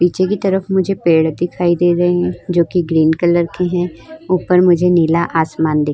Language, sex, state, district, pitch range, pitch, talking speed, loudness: Hindi, female, Uttar Pradesh, Hamirpur, 165-180 Hz, 175 Hz, 200 wpm, -15 LUFS